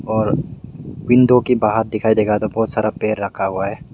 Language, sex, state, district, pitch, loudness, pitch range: Hindi, male, Meghalaya, West Garo Hills, 110 Hz, -17 LUFS, 110-125 Hz